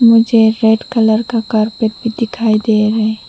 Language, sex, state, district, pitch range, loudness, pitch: Hindi, female, Mizoram, Aizawl, 220-230 Hz, -13 LUFS, 220 Hz